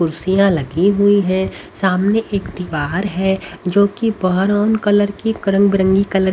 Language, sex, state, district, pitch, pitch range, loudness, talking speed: Hindi, female, Haryana, Rohtak, 195 Hz, 185-205 Hz, -16 LUFS, 160 wpm